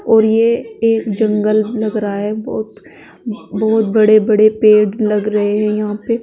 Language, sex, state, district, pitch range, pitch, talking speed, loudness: Hindi, female, Uttar Pradesh, Saharanpur, 210-220 Hz, 215 Hz, 165 wpm, -14 LUFS